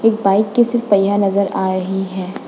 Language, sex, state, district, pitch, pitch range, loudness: Hindi, female, Uttar Pradesh, Budaun, 200 Hz, 190-215 Hz, -16 LUFS